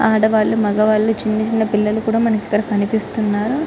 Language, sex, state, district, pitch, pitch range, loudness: Telugu, female, Telangana, Karimnagar, 215 Hz, 210-220 Hz, -17 LUFS